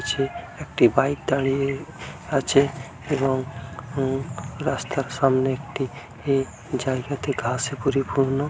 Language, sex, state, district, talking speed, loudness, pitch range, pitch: Bengali, male, West Bengal, Dakshin Dinajpur, 105 wpm, -24 LUFS, 130-140 Hz, 135 Hz